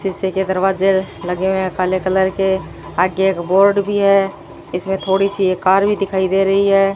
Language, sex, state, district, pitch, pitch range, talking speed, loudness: Hindi, female, Rajasthan, Bikaner, 190 Hz, 185-195 Hz, 205 wpm, -16 LUFS